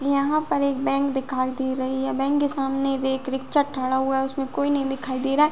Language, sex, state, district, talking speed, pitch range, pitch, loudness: Hindi, female, Uttar Pradesh, Muzaffarnagar, 250 wpm, 265-280 Hz, 270 Hz, -24 LUFS